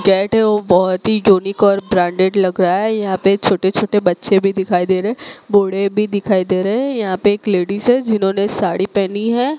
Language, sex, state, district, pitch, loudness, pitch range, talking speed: Hindi, female, Gujarat, Gandhinagar, 200 Hz, -15 LUFS, 190-215 Hz, 220 wpm